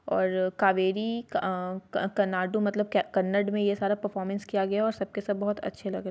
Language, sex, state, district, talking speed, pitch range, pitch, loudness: Hindi, female, Bihar, Sitamarhi, 205 wpm, 190-205 Hz, 200 Hz, -28 LUFS